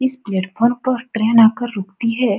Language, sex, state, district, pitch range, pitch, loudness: Hindi, female, Bihar, Supaul, 210-245 Hz, 230 Hz, -17 LUFS